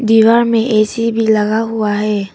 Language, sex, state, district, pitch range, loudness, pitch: Hindi, female, Arunachal Pradesh, Papum Pare, 210-225 Hz, -13 LUFS, 220 Hz